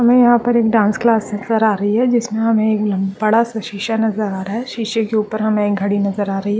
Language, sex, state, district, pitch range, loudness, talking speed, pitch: Hindi, female, Uttarakhand, Uttarkashi, 205-225 Hz, -17 LUFS, 265 wpm, 220 Hz